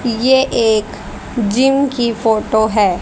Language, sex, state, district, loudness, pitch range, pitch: Hindi, female, Haryana, Rohtak, -14 LUFS, 220-255 Hz, 230 Hz